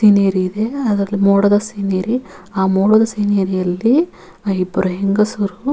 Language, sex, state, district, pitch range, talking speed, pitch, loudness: Kannada, female, Karnataka, Bellary, 190-215 Hz, 115 wpm, 200 Hz, -16 LUFS